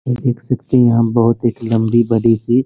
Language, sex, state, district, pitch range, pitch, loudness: Hindi, male, Bihar, Sitamarhi, 115-125 Hz, 120 Hz, -15 LUFS